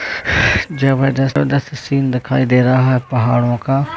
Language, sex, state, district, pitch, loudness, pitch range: Hindi, male, Rajasthan, Churu, 135 Hz, -15 LUFS, 125-135 Hz